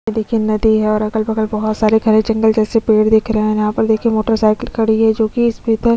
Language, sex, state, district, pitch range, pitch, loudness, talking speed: Hindi, female, Chhattisgarh, Sukma, 215-225 Hz, 220 Hz, -15 LUFS, 280 wpm